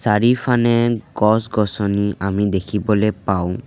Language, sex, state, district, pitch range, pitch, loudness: Assamese, male, Assam, Sonitpur, 100-115 Hz, 105 Hz, -18 LUFS